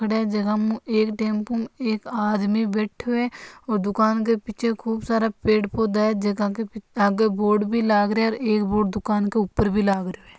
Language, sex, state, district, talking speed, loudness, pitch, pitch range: Marwari, female, Rajasthan, Nagaur, 175 wpm, -23 LUFS, 215 Hz, 210-225 Hz